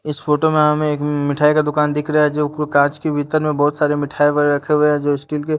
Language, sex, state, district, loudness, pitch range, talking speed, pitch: Hindi, male, Haryana, Jhajjar, -17 LUFS, 145-150 Hz, 290 wpm, 150 Hz